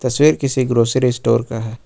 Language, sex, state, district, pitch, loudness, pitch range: Hindi, male, Jharkhand, Ranchi, 125 Hz, -16 LUFS, 115-130 Hz